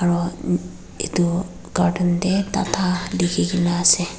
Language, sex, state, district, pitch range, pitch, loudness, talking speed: Nagamese, female, Nagaland, Dimapur, 175-180 Hz, 175 Hz, -21 LUFS, 115 wpm